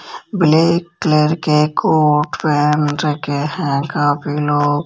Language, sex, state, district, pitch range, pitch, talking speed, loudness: Hindi, male, Rajasthan, Jaipur, 145-155 Hz, 150 Hz, 110 wpm, -16 LUFS